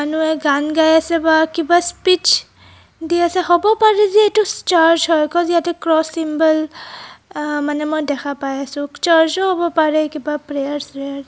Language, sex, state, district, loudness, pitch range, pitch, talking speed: Assamese, female, Assam, Kamrup Metropolitan, -16 LUFS, 295-345 Hz, 320 Hz, 170 wpm